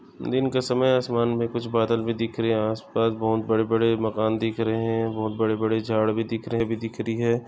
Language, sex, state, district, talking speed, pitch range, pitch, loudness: Hindi, male, Maharashtra, Nagpur, 215 wpm, 110-115 Hz, 115 Hz, -24 LUFS